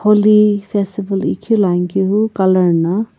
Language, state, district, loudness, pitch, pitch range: Sumi, Nagaland, Kohima, -14 LUFS, 200 Hz, 190-210 Hz